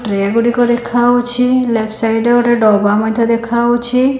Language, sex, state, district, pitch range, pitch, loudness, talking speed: Odia, female, Odisha, Khordha, 225-245 Hz, 235 Hz, -13 LUFS, 145 wpm